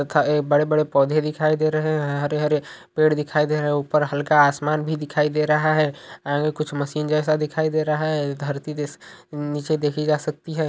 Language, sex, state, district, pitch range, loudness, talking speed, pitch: Hindi, male, Uttar Pradesh, Ghazipur, 145-155 Hz, -22 LUFS, 210 wpm, 150 Hz